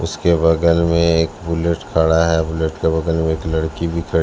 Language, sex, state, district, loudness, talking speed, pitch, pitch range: Hindi, male, Punjab, Kapurthala, -17 LUFS, 210 wpm, 80 Hz, 80-85 Hz